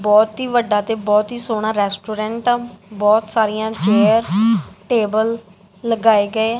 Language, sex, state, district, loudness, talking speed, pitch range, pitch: Punjabi, female, Punjab, Kapurthala, -17 LUFS, 135 wpm, 210-225 Hz, 220 Hz